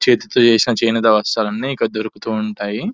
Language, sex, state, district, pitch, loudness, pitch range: Telugu, male, Telangana, Nalgonda, 115 Hz, -17 LUFS, 110-120 Hz